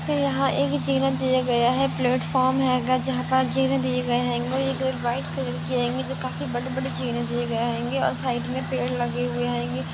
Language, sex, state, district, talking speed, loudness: Hindi, female, Bihar, Purnia, 210 wpm, -24 LUFS